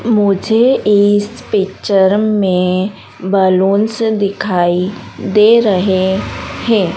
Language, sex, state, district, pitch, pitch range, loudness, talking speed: Hindi, female, Madhya Pradesh, Dhar, 200 Hz, 190-215 Hz, -13 LUFS, 75 wpm